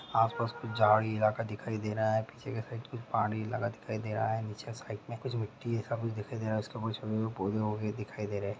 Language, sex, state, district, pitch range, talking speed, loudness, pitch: Hindi, male, Jharkhand, Jamtara, 110-115 Hz, 280 wpm, -34 LUFS, 110 Hz